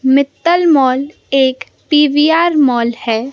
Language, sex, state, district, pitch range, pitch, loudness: Hindi, male, Madhya Pradesh, Katni, 260-300 Hz, 275 Hz, -13 LUFS